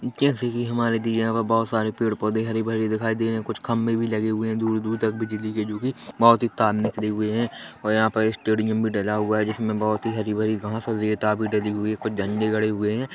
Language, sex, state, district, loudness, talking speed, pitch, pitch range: Hindi, male, Chhattisgarh, Korba, -24 LUFS, 245 wpm, 110 Hz, 110-115 Hz